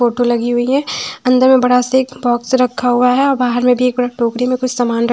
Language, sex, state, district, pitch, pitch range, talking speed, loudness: Hindi, female, Punjab, Fazilka, 250 Hz, 240-255 Hz, 280 wpm, -14 LUFS